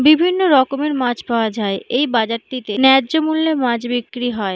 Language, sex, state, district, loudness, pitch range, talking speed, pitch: Bengali, female, West Bengal, Jhargram, -17 LUFS, 230-290 Hz, 160 wpm, 250 Hz